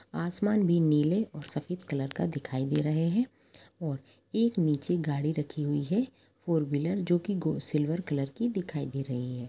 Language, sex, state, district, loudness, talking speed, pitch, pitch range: Hindi, female, Jharkhand, Jamtara, -30 LUFS, 185 wpm, 155 Hz, 145-180 Hz